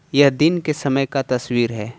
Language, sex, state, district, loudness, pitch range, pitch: Hindi, male, Jharkhand, Ranchi, -19 LUFS, 120-145 Hz, 135 Hz